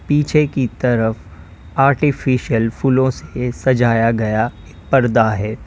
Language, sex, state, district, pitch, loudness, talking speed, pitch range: Hindi, male, Uttar Pradesh, Lalitpur, 120 Hz, -17 LUFS, 105 wpm, 110-130 Hz